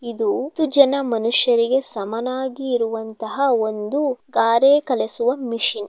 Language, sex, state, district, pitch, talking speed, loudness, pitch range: Kannada, female, Karnataka, Chamarajanagar, 240 Hz, 110 wpm, -19 LUFS, 225-270 Hz